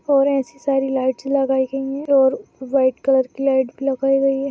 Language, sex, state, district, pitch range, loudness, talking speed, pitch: Hindi, female, Maharashtra, Sindhudurg, 265-275 Hz, -19 LUFS, 215 wpm, 270 Hz